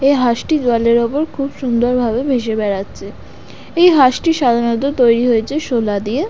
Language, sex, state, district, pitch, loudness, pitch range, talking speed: Bengali, female, West Bengal, Dakshin Dinajpur, 245 Hz, -15 LUFS, 235-280 Hz, 160 wpm